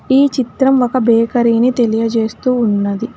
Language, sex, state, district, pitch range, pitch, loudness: Telugu, female, Telangana, Hyderabad, 225-255 Hz, 235 Hz, -14 LUFS